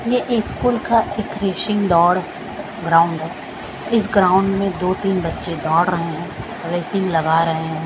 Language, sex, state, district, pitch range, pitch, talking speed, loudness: Hindi, female, Chhattisgarh, Raipur, 170-205 Hz, 185 Hz, 160 wpm, -19 LUFS